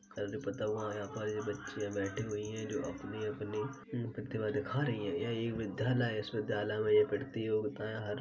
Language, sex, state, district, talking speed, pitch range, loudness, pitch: Hindi, male, Uttar Pradesh, Jalaun, 210 wpm, 105-125 Hz, -36 LUFS, 110 Hz